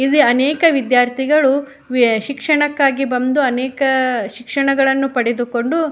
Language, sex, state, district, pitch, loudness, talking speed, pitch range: Kannada, female, Karnataka, Shimoga, 270 Hz, -16 LUFS, 100 wpm, 250-280 Hz